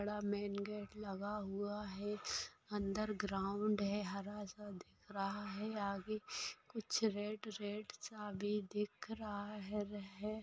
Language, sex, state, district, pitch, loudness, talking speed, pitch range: Hindi, female, Bihar, Saran, 210 Hz, -43 LUFS, 125 wpm, 205-215 Hz